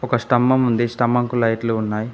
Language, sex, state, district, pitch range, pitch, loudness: Telugu, male, Telangana, Mahabubabad, 115-125 Hz, 120 Hz, -19 LUFS